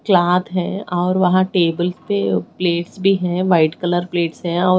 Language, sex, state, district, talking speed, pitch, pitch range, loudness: Hindi, female, Odisha, Khordha, 190 wpm, 180 Hz, 170-185 Hz, -18 LUFS